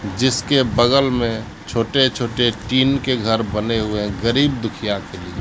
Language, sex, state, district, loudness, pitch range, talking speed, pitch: Hindi, male, Bihar, Katihar, -18 LUFS, 105-130 Hz, 165 wpm, 115 Hz